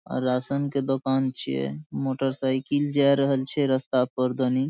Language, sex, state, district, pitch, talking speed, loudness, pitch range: Maithili, male, Bihar, Saharsa, 130 Hz, 165 wpm, -25 LUFS, 130-140 Hz